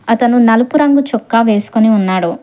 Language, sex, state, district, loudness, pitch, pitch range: Telugu, female, Telangana, Hyderabad, -11 LUFS, 230 Hz, 215-245 Hz